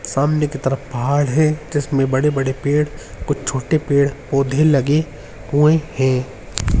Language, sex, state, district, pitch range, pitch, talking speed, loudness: Hindi, male, Uttarakhand, Uttarkashi, 135-150 Hz, 140 Hz, 130 wpm, -18 LUFS